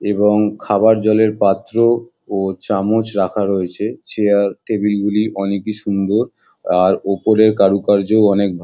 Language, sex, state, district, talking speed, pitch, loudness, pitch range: Bengali, male, West Bengal, Jalpaiguri, 125 wpm, 105 Hz, -16 LUFS, 100-110 Hz